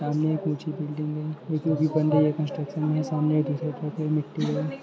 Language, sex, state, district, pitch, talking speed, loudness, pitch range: Hindi, male, Jharkhand, Sahebganj, 150 Hz, 225 wpm, -26 LUFS, 150-155 Hz